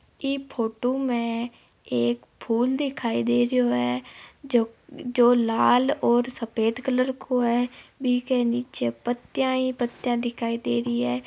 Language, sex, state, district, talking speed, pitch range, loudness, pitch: Marwari, female, Rajasthan, Nagaur, 135 wpm, 225-255 Hz, -25 LUFS, 240 Hz